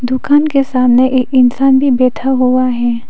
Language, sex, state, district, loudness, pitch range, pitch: Hindi, female, Arunachal Pradesh, Papum Pare, -11 LUFS, 250-270 Hz, 255 Hz